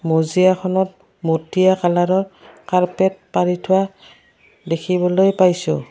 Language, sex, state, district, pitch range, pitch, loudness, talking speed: Assamese, female, Assam, Kamrup Metropolitan, 175-190 Hz, 185 Hz, -18 LUFS, 90 wpm